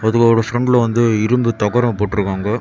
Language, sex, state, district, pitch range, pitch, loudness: Tamil, male, Tamil Nadu, Kanyakumari, 105-120 Hz, 115 Hz, -16 LUFS